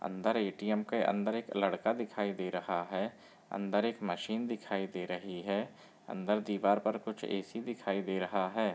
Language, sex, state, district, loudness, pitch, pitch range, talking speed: Hindi, female, Bihar, Muzaffarpur, -35 LUFS, 100 Hz, 95-110 Hz, 180 wpm